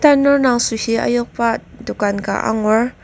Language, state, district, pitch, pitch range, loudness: Ao, Nagaland, Kohima, 230 Hz, 220-250 Hz, -17 LUFS